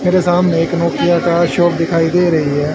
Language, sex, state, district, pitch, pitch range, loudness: Hindi, male, Haryana, Charkhi Dadri, 170 Hz, 165-175 Hz, -14 LUFS